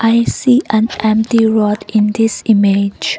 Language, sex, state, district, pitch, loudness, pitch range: English, female, Nagaland, Kohima, 220 Hz, -13 LUFS, 210-225 Hz